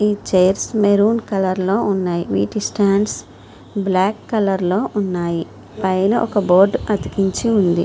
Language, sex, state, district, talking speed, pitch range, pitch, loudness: Telugu, female, Andhra Pradesh, Srikakulam, 130 wpm, 185-210 Hz, 195 Hz, -18 LUFS